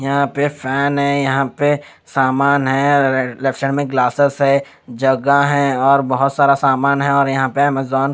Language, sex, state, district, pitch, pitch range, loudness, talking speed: Hindi, male, Chandigarh, Chandigarh, 140 Hz, 135-140 Hz, -16 LUFS, 175 wpm